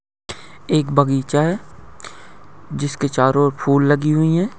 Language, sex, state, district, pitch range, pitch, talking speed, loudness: Hindi, male, Uttar Pradesh, Budaun, 140-155 Hz, 145 Hz, 130 wpm, -18 LUFS